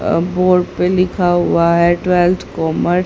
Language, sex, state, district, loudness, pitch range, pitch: Hindi, female, Haryana, Charkhi Dadri, -14 LUFS, 170-180 Hz, 180 Hz